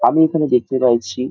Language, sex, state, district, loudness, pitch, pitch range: Bengali, male, West Bengal, Dakshin Dinajpur, -16 LUFS, 130 Hz, 125-155 Hz